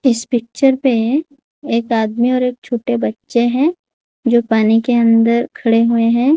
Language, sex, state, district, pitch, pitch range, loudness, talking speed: Hindi, female, Odisha, Khordha, 235 Hz, 230-255 Hz, -15 LUFS, 160 wpm